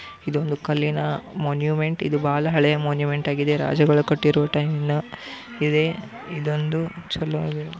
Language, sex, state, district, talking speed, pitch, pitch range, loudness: Kannada, male, Karnataka, Belgaum, 125 wpm, 150 Hz, 145-160 Hz, -22 LUFS